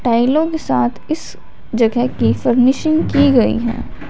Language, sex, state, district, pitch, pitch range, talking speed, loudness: Hindi, female, Punjab, Fazilka, 245 Hz, 230-300 Hz, 145 wpm, -16 LUFS